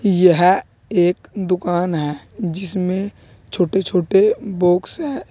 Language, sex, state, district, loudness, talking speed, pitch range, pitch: Hindi, male, Uttar Pradesh, Saharanpur, -18 LUFS, 100 wpm, 175-195 Hz, 185 Hz